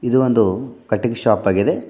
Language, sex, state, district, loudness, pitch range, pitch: Kannada, male, Karnataka, Bidar, -18 LUFS, 115-130 Hz, 120 Hz